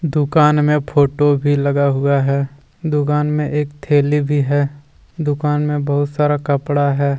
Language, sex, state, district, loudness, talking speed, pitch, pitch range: Hindi, male, Jharkhand, Deoghar, -16 LUFS, 160 wpm, 145 Hz, 140-150 Hz